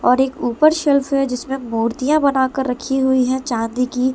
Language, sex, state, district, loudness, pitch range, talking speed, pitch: Hindi, female, Delhi, New Delhi, -18 LUFS, 250-270 Hz, 190 wpm, 260 Hz